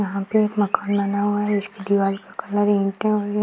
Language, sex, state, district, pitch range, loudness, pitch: Hindi, female, Bihar, Madhepura, 200-205 Hz, -21 LUFS, 205 Hz